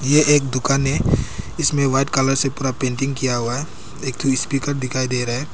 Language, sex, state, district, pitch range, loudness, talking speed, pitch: Hindi, male, Arunachal Pradesh, Papum Pare, 130-140 Hz, -20 LUFS, 215 wpm, 135 Hz